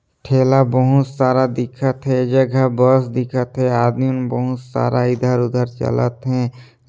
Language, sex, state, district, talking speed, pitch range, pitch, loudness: Chhattisgarhi, male, Chhattisgarh, Sarguja, 150 wpm, 125-130 Hz, 125 Hz, -17 LUFS